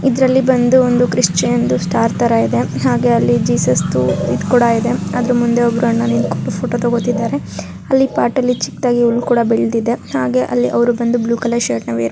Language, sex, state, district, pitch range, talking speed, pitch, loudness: Kannada, female, Karnataka, Mysore, 165-245 Hz, 185 wpm, 235 Hz, -15 LUFS